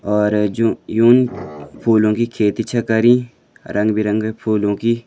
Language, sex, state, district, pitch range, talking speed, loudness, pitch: Garhwali, male, Uttarakhand, Uttarkashi, 105-115 Hz, 155 wpm, -17 LUFS, 110 Hz